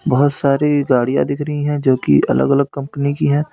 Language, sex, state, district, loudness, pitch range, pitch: Hindi, male, Uttar Pradesh, Lalitpur, -16 LUFS, 140-145 Hz, 140 Hz